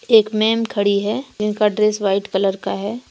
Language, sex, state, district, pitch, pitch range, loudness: Hindi, female, Jharkhand, Deoghar, 210 Hz, 200-220 Hz, -19 LUFS